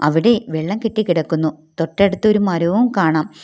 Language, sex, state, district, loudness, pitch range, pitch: Malayalam, female, Kerala, Kollam, -17 LUFS, 160-210 Hz, 170 Hz